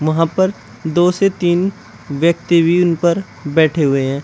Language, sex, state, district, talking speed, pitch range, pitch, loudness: Hindi, male, Uttar Pradesh, Shamli, 170 wpm, 155-180 Hz, 170 Hz, -15 LUFS